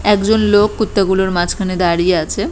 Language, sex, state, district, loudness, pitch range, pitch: Bengali, female, West Bengal, Purulia, -14 LUFS, 180-210 Hz, 190 Hz